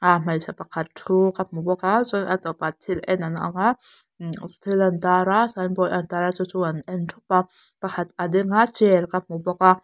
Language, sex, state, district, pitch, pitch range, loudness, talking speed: Mizo, female, Mizoram, Aizawl, 185 Hz, 175-190 Hz, -23 LUFS, 220 wpm